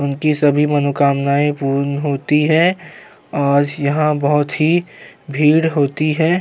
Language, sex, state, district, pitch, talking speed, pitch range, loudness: Hindi, male, Uttar Pradesh, Jyotiba Phule Nagar, 145 Hz, 120 wpm, 140-155 Hz, -16 LUFS